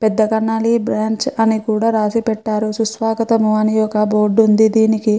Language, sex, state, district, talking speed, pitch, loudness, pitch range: Telugu, female, Andhra Pradesh, Chittoor, 150 wpm, 220 Hz, -16 LUFS, 215-225 Hz